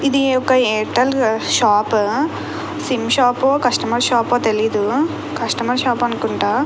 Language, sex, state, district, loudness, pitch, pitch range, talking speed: Telugu, female, Andhra Pradesh, Krishna, -17 LUFS, 245 Hz, 225-260 Hz, 110 wpm